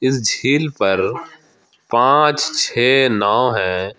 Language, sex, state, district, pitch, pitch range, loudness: Hindi, male, Jharkhand, Ranchi, 130 Hz, 100-140 Hz, -16 LUFS